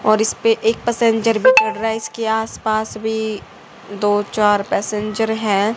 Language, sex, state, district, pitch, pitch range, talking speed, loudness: Hindi, female, Haryana, Rohtak, 220 Hz, 210-225 Hz, 155 wpm, -18 LUFS